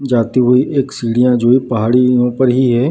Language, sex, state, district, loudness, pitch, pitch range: Hindi, male, Bihar, Samastipur, -13 LUFS, 125 Hz, 120-130 Hz